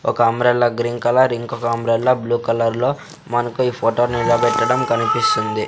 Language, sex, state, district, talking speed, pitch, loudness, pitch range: Telugu, male, Andhra Pradesh, Sri Satya Sai, 135 wpm, 120 Hz, -18 LUFS, 115-125 Hz